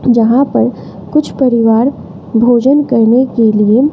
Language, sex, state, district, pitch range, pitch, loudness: Hindi, female, Bihar, West Champaran, 230-265 Hz, 240 Hz, -11 LUFS